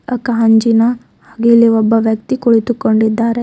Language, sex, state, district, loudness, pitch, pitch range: Kannada, female, Karnataka, Bidar, -12 LUFS, 230 Hz, 225-235 Hz